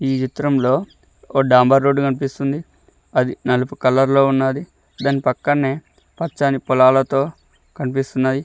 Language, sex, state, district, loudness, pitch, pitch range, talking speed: Telugu, male, Telangana, Mahabubabad, -18 LUFS, 135 Hz, 130-140 Hz, 105 wpm